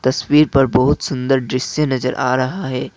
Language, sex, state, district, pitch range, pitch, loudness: Hindi, male, Assam, Kamrup Metropolitan, 130-140 Hz, 130 Hz, -17 LUFS